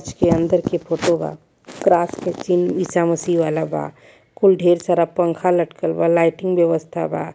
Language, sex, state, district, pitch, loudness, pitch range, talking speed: Hindi, male, Uttar Pradesh, Varanasi, 170 Hz, -19 LUFS, 165-180 Hz, 180 wpm